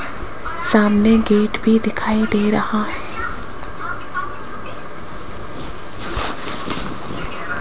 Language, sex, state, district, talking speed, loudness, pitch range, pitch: Hindi, female, Rajasthan, Jaipur, 55 wpm, -20 LUFS, 210-220 Hz, 215 Hz